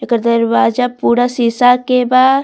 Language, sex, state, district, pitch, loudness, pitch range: Bhojpuri, female, Bihar, Muzaffarpur, 245 Hz, -13 LUFS, 235-250 Hz